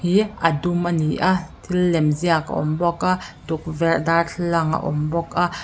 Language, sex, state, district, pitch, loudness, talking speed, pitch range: Mizo, female, Mizoram, Aizawl, 170 Hz, -21 LUFS, 200 wpm, 160-175 Hz